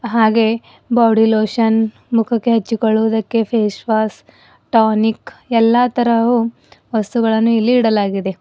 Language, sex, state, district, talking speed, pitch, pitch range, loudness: Kannada, female, Karnataka, Bidar, 95 wpm, 225 Hz, 220-235 Hz, -15 LUFS